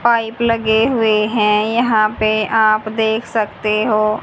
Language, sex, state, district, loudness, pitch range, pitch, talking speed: Hindi, female, Haryana, Jhajjar, -15 LUFS, 215-225 Hz, 220 Hz, 140 wpm